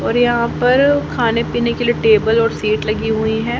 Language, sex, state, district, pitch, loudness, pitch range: Hindi, female, Haryana, Charkhi Dadri, 230 Hz, -15 LUFS, 220-240 Hz